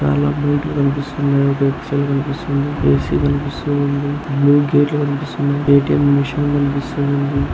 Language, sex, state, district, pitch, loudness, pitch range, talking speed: Telugu, male, Andhra Pradesh, Anantapur, 140 Hz, -17 LUFS, 140-145 Hz, 120 wpm